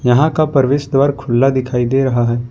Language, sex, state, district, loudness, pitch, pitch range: Hindi, male, Jharkhand, Ranchi, -14 LUFS, 135 Hz, 125-140 Hz